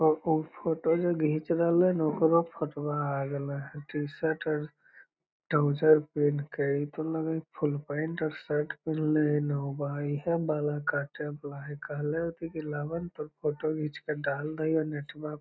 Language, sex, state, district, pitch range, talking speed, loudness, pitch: Magahi, male, Bihar, Lakhisarai, 145-160 Hz, 185 wpm, -30 LUFS, 150 Hz